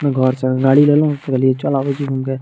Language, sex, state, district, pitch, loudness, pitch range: Maithili, male, Bihar, Madhepura, 135 Hz, -15 LUFS, 130-140 Hz